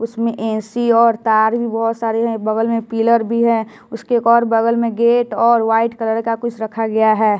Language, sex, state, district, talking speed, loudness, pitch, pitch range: Hindi, male, Bihar, West Champaran, 220 wpm, -16 LUFS, 230 Hz, 225-235 Hz